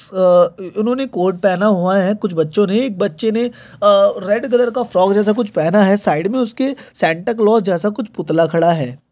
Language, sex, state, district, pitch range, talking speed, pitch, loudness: Hindi, male, Chhattisgarh, Kabirdham, 185-240 Hz, 210 wpm, 210 Hz, -16 LUFS